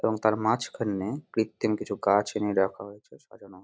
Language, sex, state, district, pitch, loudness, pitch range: Bengali, male, West Bengal, Jalpaiguri, 105 Hz, -27 LUFS, 100-110 Hz